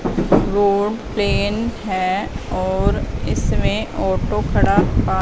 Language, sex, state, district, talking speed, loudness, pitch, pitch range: Hindi, female, Punjab, Fazilka, 90 wpm, -19 LUFS, 200 Hz, 185-210 Hz